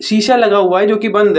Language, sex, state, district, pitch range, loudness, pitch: Hindi, male, Uttar Pradesh, Muzaffarnagar, 205-220 Hz, -12 LUFS, 215 Hz